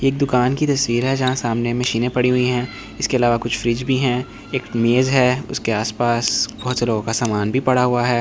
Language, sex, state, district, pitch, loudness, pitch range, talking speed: Hindi, male, Delhi, New Delhi, 125 Hz, -19 LUFS, 120-130 Hz, 235 wpm